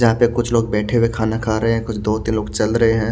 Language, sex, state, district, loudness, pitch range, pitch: Hindi, male, Haryana, Charkhi Dadri, -18 LUFS, 110-115 Hz, 115 Hz